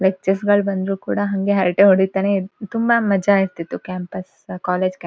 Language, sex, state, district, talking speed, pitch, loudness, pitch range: Kannada, female, Karnataka, Shimoga, 165 wpm, 195 Hz, -19 LUFS, 185-200 Hz